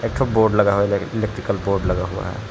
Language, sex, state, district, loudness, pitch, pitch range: Hindi, male, Jharkhand, Palamu, -20 LUFS, 100 Hz, 95-110 Hz